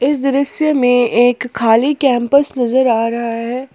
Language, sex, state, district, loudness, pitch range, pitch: Hindi, female, Jharkhand, Palamu, -14 LUFS, 235-275 Hz, 250 Hz